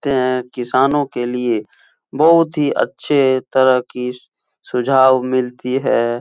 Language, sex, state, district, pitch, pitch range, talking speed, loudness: Hindi, male, Uttar Pradesh, Etah, 130 Hz, 125-135 Hz, 125 wpm, -16 LUFS